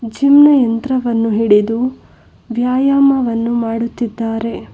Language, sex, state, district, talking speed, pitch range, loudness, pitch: Kannada, female, Karnataka, Bangalore, 75 wpm, 230-260 Hz, -14 LUFS, 235 Hz